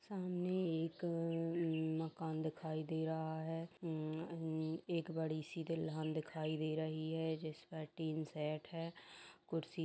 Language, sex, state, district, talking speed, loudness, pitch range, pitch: Hindi, female, Uttar Pradesh, Jalaun, 140 wpm, -42 LUFS, 155-165 Hz, 160 Hz